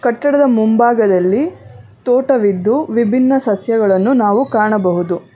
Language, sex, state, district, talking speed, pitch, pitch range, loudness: Kannada, female, Karnataka, Bangalore, 80 wpm, 225 Hz, 200-255 Hz, -13 LUFS